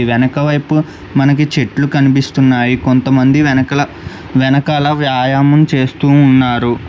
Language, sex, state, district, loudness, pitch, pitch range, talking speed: Telugu, male, Telangana, Hyderabad, -12 LUFS, 135 Hz, 130-145 Hz, 95 wpm